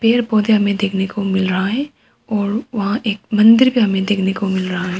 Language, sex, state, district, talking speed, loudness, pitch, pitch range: Hindi, female, Arunachal Pradesh, Papum Pare, 230 wpm, -16 LUFS, 205 Hz, 195-220 Hz